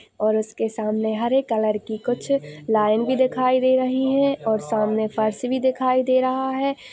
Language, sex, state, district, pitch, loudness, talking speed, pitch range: Hindi, female, Chhattisgarh, Sarguja, 235 Hz, -21 LUFS, 175 wpm, 215-260 Hz